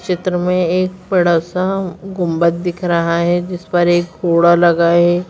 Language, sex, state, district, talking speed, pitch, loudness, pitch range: Hindi, female, Bihar, Vaishali, 170 wpm, 175 Hz, -15 LUFS, 170-180 Hz